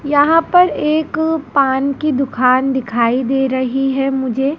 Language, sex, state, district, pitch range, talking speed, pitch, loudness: Hindi, female, Madhya Pradesh, Dhar, 260-300 Hz, 145 wpm, 270 Hz, -15 LUFS